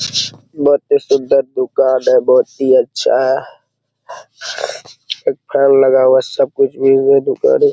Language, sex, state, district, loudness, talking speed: Hindi, male, Bihar, Araria, -13 LUFS, 130 wpm